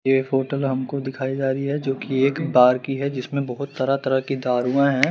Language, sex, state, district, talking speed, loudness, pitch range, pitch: Hindi, male, Chandigarh, Chandigarh, 260 wpm, -22 LUFS, 130-140 Hz, 135 Hz